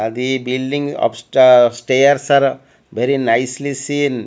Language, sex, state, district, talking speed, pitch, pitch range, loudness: English, male, Odisha, Malkangiri, 115 wpm, 130 Hz, 125-140 Hz, -15 LUFS